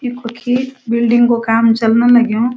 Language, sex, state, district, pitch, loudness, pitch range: Garhwali, female, Uttarakhand, Uttarkashi, 235 Hz, -13 LUFS, 230-245 Hz